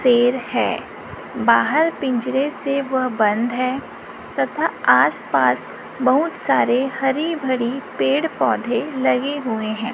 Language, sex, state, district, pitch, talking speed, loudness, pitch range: Hindi, female, Chhattisgarh, Raipur, 260 Hz, 120 wpm, -19 LUFS, 245-275 Hz